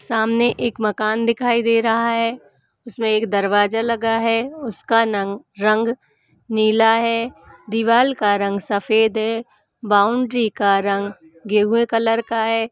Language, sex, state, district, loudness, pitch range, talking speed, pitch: Hindi, female, Uttar Pradesh, Hamirpur, -19 LUFS, 210-230 Hz, 135 wpm, 225 Hz